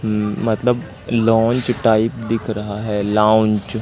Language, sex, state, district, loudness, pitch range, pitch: Hindi, male, Madhya Pradesh, Katni, -18 LUFS, 105-115 Hz, 110 Hz